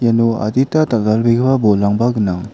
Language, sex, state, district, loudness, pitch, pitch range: Garo, male, Meghalaya, West Garo Hills, -15 LUFS, 115 Hz, 105-120 Hz